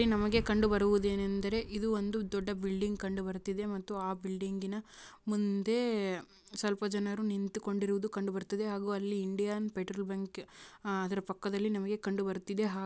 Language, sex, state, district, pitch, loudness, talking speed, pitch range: Kannada, female, Karnataka, Bijapur, 200 Hz, -35 LUFS, 135 wpm, 195-210 Hz